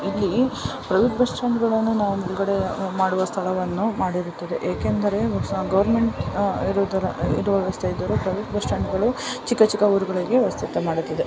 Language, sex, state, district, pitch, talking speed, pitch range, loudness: Kannada, female, Karnataka, Bellary, 200 Hz, 140 wpm, 190-225 Hz, -22 LUFS